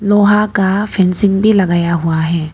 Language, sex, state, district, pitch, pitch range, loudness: Hindi, female, Arunachal Pradesh, Papum Pare, 190 Hz, 170-205 Hz, -13 LUFS